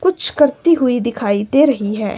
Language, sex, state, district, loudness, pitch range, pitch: Hindi, female, Himachal Pradesh, Shimla, -15 LUFS, 210-295 Hz, 255 Hz